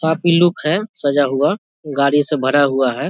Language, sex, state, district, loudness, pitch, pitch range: Hindi, male, Bihar, Vaishali, -16 LUFS, 145 Hz, 140-170 Hz